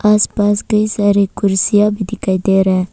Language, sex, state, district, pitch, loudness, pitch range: Hindi, female, Arunachal Pradesh, Papum Pare, 205 Hz, -14 LUFS, 195-210 Hz